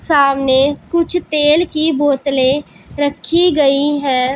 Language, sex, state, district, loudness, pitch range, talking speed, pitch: Hindi, female, Punjab, Pathankot, -14 LUFS, 275-310 Hz, 110 wpm, 290 Hz